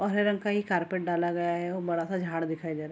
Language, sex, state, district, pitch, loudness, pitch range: Hindi, female, Bihar, Araria, 175 Hz, -30 LUFS, 170-190 Hz